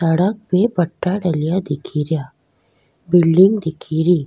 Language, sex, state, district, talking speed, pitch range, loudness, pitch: Rajasthani, female, Rajasthan, Nagaur, 100 wpm, 150-185 Hz, -17 LUFS, 165 Hz